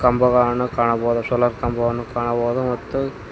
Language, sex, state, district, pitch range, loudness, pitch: Kannada, male, Karnataka, Koppal, 120-125 Hz, -20 LUFS, 120 Hz